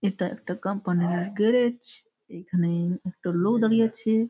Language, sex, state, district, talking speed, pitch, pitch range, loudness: Bengali, male, West Bengal, Malda, 155 wpm, 195 Hz, 180-225 Hz, -25 LUFS